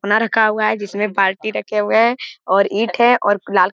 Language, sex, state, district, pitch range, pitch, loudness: Hindi, male, Bihar, Jamui, 200-220 Hz, 210 Hz, -16 LUFS